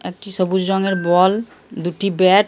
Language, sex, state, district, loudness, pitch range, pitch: Bengali, male, Jharkhand, Jamtara, -18 LUFS, 185-195 Hz, 190 Hz